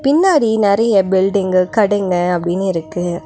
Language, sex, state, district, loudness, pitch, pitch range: Tamil, female, Tamil Nadu, Nilgiris, -15 LUFS, 190 Hz, 180-205 Hz